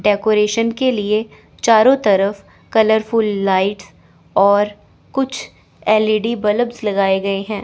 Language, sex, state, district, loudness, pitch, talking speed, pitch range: Hindi, female, Chandigarh, Chandigarh, -16 LUFS, 210 Hz, 125 wpm, 200-225 Hz